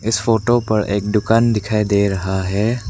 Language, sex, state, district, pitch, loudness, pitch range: Hindi, male, Arunachal Pradesh, Lower Dibang Valley, 105 Hz, -17 LUFS, 100-115 Hz